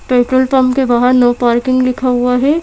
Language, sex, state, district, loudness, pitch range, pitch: Hindi, female, Madhya Pradesh, Bhopal, -12 LUFS, 245-260 Hz, 255 Hz